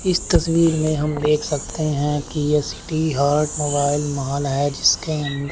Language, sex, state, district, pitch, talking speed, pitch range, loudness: Hindi, male, Chandigarh, Chandigarh, 150 Hz, 175 wpm, 145-155 Hz, -20 LUFS